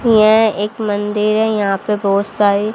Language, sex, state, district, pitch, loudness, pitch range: Hindi, female, Haryana, Jhajjar, 210 Hz, -15 LUFS, 205-215 Hz